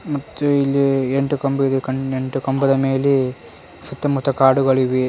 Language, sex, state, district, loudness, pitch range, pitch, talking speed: Kannada, male, Karnataka, Dharwad, -18 LUFS, 135-140 Hz, 135 Hz, 130 wpm